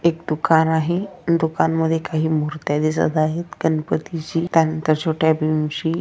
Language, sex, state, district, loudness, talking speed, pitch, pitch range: Marathi, female, Maharashtra, Dhule, -20 LUFS, 130 wpm, 160 Hz, 155-165 Hz